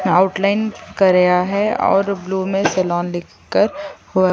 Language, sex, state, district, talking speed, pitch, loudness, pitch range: Hindi, female, Chhattisgarh, Sarguja, 140 wpm, 190 Hz, -17 LUFS, 180-200 Hz